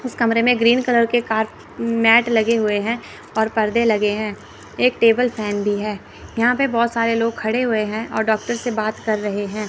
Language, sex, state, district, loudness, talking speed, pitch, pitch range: Hindi, female, Chandigarh, Chandigarh, -19 LUFS, 215 wpm, 225 Hz, 215-235 Hz